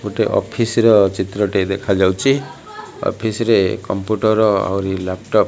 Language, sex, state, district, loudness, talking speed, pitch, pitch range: Odia, male, Odisha, Malkangiri, -17 LUFS, 130 wpm, 100 Hz, 95-110 Hz